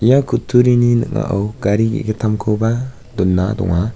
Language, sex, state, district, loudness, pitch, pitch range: Garo, male, Meghalaya, West Garo Hills, -16 LUFS, 115 Hz, 105-125 Hz